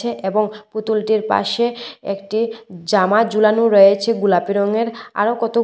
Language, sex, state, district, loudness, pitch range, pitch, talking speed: Bengali, female, Tripura, West Tripura, -17 LUFS, 200-230 Hz, 215 Hz, 115 wpm